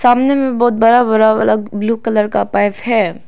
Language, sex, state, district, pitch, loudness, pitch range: Hindi, female, Arunachal Pradesh, Lower Dibang Valley, 225 Hz, -13 LUFS, 210-245 Hz